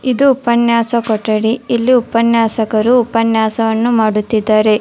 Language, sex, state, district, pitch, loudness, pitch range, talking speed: Kannada, female, Karnataka, Dharwad, 230 Hz, -13 LUFS, 220-235 Hz, 85 wpm